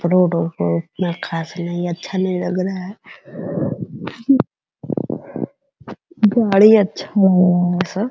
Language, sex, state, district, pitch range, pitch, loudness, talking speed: Hindi, female, Bihar, Purnia, 175-210 Hz, 185 Hz, -18 LUFS, 110 wpm